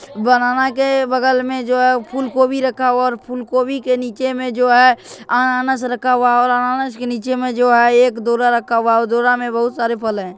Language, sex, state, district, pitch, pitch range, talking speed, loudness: Magahi, male, Bihar, Gaya, 250 Hz, 240-255 Hz, 230 wpm, -16 LUFS